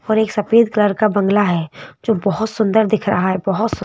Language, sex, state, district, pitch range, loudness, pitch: Hindi, female, Madhya Pradesh, Bhopal, 195-220 Hz, -17 LUFS, 210 Hz